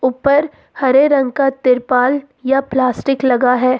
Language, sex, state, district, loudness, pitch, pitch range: Hindi, female, Jharkhand, Ranchi, -15 LUFS, 265 Hz, 255-275 Hz